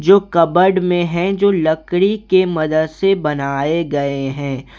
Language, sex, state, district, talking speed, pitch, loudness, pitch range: Hindi, male, Jharkhand, Garhwa, 150 wpm, 170 Hz, -16 LUFS, 150-190 Hz